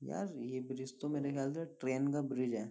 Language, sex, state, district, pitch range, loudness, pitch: Hindi, male, Uttar Pradesh, Jyotiba Phule Nagar, 130-145 Hz, -39 LUFS, 130 Hz